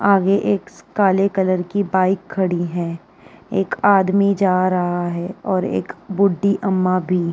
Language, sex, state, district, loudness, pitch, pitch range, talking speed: Hindi, female, Uttar Pradesh, Jyotiba Phule Nagar, -19 LUFS, 190 Hz, 180-200 Hz, 155 wpm